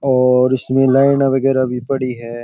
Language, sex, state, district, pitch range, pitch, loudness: Rajasthani, male, Rajasthan, Churu, 125-135 Hz, 130 Hz, -15 LUFS